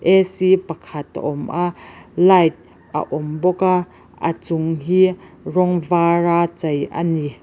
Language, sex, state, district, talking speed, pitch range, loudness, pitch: Mizo, female, Mizoram, Aizawl, 145 wpm, 155-180 Hz, -19 LUFS, 170 Hz